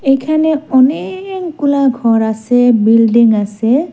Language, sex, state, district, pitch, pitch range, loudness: Bengali, female, Assam, Hailakandi, 260 Hz, 230-310 Hz, -12 LUFS